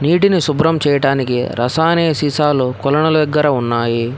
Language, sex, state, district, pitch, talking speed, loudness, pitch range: Telugu, male, Telangana, Hyderabad, 145 Hz, 115 wpm, -15 LUFS, 125-160 Hz